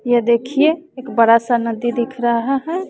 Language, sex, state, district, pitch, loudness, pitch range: Hindi, female, Bihar, West Champaran, 240 Hz, -17 LUFS, 235-275 Hz